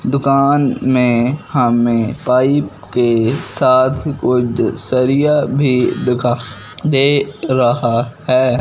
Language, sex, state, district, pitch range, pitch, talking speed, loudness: Hindi, male, Punjab, Fazilka, 120-140 Hz, 125 Hz, 90 wpm, -15 LUFS